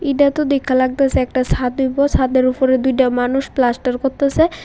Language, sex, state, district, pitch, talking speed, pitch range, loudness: Bengali, female, Tripura, West Tripura, 265 Hz, 170 wpm, 255-280 Hz, -16 LUFS